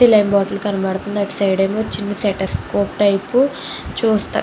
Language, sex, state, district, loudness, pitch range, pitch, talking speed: Telugu, female, Andhra Pradesh, Chittoor, -18 LUFS, 195-210 Hz, 205 Hz, 150 wpm